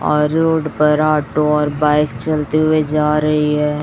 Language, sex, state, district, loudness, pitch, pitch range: Hindi, male, Chhattisgarh, Raipur, -15 LUFS, 150 Hz, 150-155 Hz